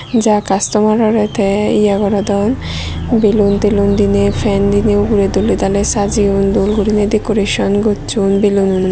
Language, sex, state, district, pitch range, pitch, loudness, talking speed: Chakma, female, Tripura, Dhalai, 195-210 Hz, 205 Hz, -13 LUFS, 130 wpm